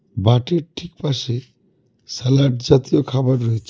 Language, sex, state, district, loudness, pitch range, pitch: Bengali, male, West Bengal, Cooch Behar, -19 LUFS, 120-145 Hz, 130 Hz